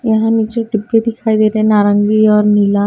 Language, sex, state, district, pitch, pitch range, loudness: Hindi, female, Haryana, Rohtak, 215 Hz, 210-225 Hz, -12 LUFS